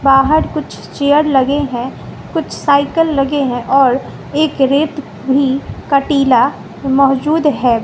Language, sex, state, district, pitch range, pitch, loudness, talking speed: Hindi, female, Bihar, West Champaran, 270-295 Hz, 275 Hz, -14 LUFS, 130 wpm